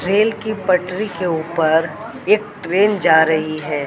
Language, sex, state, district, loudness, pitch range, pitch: Hindi, male, Madhya Pradesh, Katni, -17 LUFS, 160-210 Hz, 180 Hz